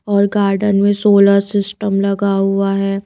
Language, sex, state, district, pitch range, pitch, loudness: Hindi, female, Himachal Pradesh, Shimla, 195-205 Hz, 200 Hz, -14 LUFS